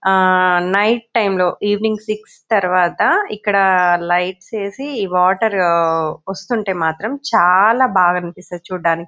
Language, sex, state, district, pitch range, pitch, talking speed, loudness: Telugu, female, Telangana, Nalgonda, 180-215 Hz, 190 Hz, 125 wpm, -16 LUFS